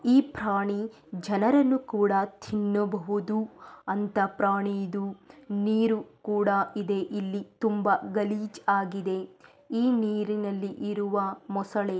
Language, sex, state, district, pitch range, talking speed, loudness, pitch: Kannada, female, Karnataka, Mysore, 200-215 Hz, 85 wpm, -28 LUFS, 205 Hz